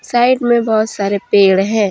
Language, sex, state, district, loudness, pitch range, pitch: Hindi, female, Jharkhand, Deoghar, -13 LUFS, 200-235 Hz, 215 Hz